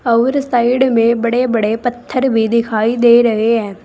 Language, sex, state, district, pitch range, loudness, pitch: Hindi, female, Uttar Pradesh, Saharanpur, 225-245 Hz, -14 LUFS, 235 Hz